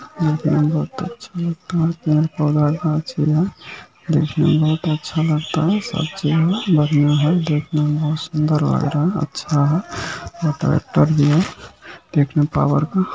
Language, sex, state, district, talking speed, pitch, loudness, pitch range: Hindi, male, Bihar, Bhagalpur, 145 wpm, 155 Hz, -19 LUFS, 150-165 Hz